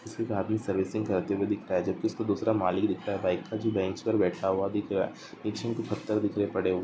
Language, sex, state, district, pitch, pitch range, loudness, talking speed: Hindi, male, Bihar, Darbhanga, 105 Hz, 95-110 Hz, -30 LUFS, 270 wpm